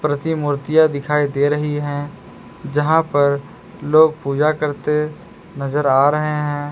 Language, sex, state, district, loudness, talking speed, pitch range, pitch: Hindi, male, Jharkhand, Palamu, -18 LUFS, 135 wpm, 145-150 Hz, 150 Hz